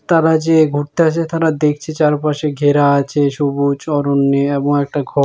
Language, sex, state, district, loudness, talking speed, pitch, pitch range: Bengali, male, West Bengal, Jalpaiguri, -15 LUFS, 160 wpm, 145 Hz, 140-155 Hz